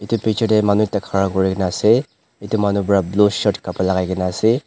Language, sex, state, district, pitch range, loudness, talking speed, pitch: Nagamese, male, Nagaland, Dimapur, 95-110 Hz, -18 LUFS, 220 wpm, 100 Hz